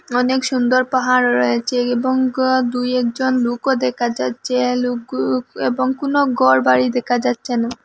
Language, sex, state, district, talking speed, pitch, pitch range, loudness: Bengali, female, Assam, Hailakandi, 130 wpm, 250 Hz, 240-260 Hz, -17 LUFS